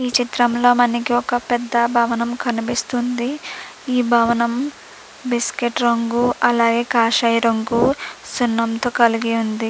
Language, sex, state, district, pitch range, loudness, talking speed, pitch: Telugu, female, Andhra Pradesh, Chittoor, 235-245 Hz, -18 LUFS, 105 wpm, 240 Hz